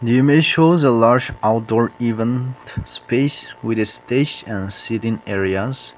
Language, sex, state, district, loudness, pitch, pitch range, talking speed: English, male, Nagaland, Kohima, -17 LUFS, 115 Hz, 110-130 Hz, 140 wpm